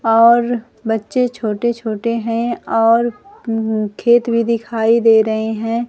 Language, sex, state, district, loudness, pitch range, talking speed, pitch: Hindi, female, Bihar, Kaimur, -16 LUFS, 220-235 Hz, 130 wpm, 230 Hz